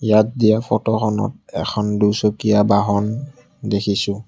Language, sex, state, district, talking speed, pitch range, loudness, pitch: Assamese, male, Assam, Kamrup Metropolitan, 110 wpm, 105-110 Hz, -18 LUFS, 105 Hz